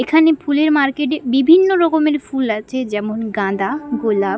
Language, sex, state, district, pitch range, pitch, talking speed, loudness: Bengali, female, West Bengal, Paschim Medinipur, 220-305 Hz, 270 Hz, 150 wpm, -16 LUFS